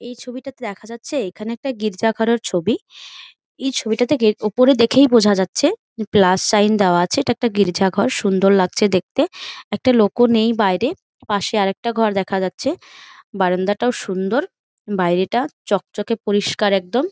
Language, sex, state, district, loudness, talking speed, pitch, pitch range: Bengali, female, West Bengal, Malda, -18 LUFS, 165 wpm, 225 Hz, 200-255 Hz